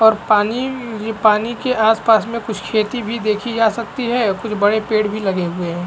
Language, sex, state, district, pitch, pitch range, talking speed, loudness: Hindi, male, Chhattisgarh, Balrampur, 220 Hz, 210-230 Hz, 235 wpm, -17 LUFS